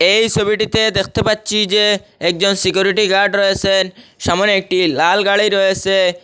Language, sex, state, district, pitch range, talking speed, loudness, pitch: Bengali, male, Assam, Hailakandi, 190-210 Hz, 135 wpm, -14 LUFS, 200 Hz